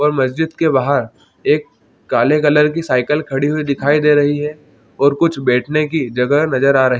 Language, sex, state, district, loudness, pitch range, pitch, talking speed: Hindi, male, Chhattisgarh, Bilaspur, -15 LUFS, 130-150 Hz, 145 Hz, 205 wpm